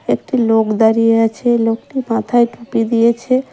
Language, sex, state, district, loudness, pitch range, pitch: Bengali, female, West Bengal, Cooch Behar, -15 LUFS, 225-240 Hz, 230 Hz